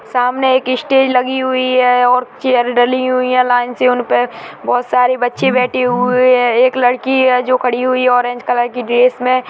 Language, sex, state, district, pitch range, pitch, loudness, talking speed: Hindi, female, Chhattisgarh, Kabirdham, 245-255 Hz, 250 Hz, -13 LUFS, 200 wpm